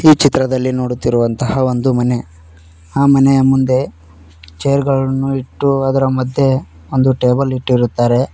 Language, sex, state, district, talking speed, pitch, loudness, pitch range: Kannada, male, Karnataka, Koppal, 120 wpm, 130 Hz, -14 LUFS, 120-135 Hz